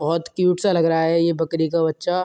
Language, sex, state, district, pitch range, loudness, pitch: Hindi, male, Uttar Pradesh, Muzaffarnagar, 165-175 Hz, -20 LUFS, 165 Hz